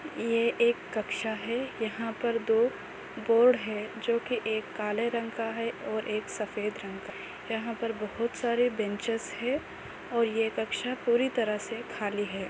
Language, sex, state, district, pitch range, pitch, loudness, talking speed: Hindi, female, Maharashtra, Nagpur, 215-235 Hz, 230 Hz, -30 LUFS, 175 wpm